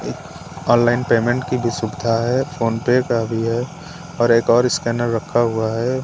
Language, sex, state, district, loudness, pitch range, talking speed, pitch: Hindi, male, Maharashtra, Washim, -18 LUFS, 115-125 Hz, 180 wpm, 120 Hz